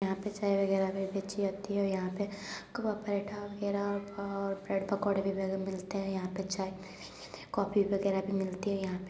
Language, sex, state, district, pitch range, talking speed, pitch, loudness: Hindi, female, Uttar Pradesh, Jalaun, 190-200 Hz, 205 wpm, 195 Hz, -34 LUFS